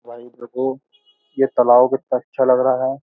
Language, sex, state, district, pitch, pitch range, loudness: Hindi, male, Uttar Pradesh, Jyotiba Phule Nagar, 130 Hz, 125-135 Hz, -17 LUFS